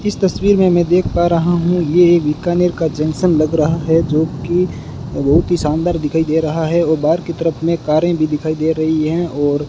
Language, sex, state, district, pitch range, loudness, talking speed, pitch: Hindi, male, Rajasthan, Bikaner, 155-175 Hz, -15 LUFS, 235 wpm, 165 Hz